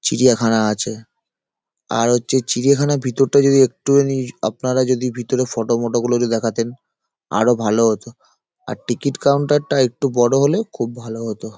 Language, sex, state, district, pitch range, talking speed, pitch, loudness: Bengali, male, West Bengal, Paschim Medinipur, 115-135 Hz, 160 wpm, 120 Hz, -18 LUFS